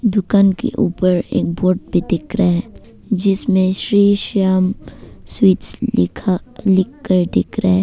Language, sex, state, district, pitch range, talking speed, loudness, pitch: Hindi, female, Arunachal Pradesh, Papum Pare, 180-200 Hz, 140 wpm, -16 LUFS, 190 Hz